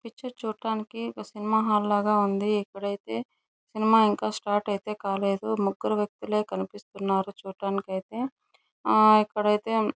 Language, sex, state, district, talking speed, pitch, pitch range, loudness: Telugu, female, Andhra Pradesh, Chittoor, 130 wpm, 205 Hz, 195-220 Hz, -27 LUFS